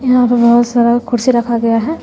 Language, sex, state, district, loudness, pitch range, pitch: Hindi, female, Bihar, West Champaran, -12 LUFS, 235-245 Hz, 240 Hz